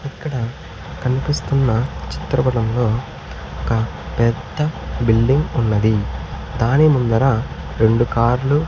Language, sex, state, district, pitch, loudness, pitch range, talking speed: Telugu, male, Andhra Pradesh, Sri Satya Sai, 120 Hz, -19 LUFS, 115-135 Hz, 90 wpm